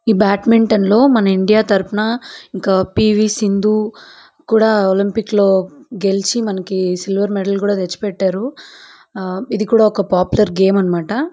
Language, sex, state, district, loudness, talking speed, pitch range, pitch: Telugu, female, Andhra Pradesh, Chittoor, -15 LUFS, 140 wpm, 190-215 Hz, 205 Hz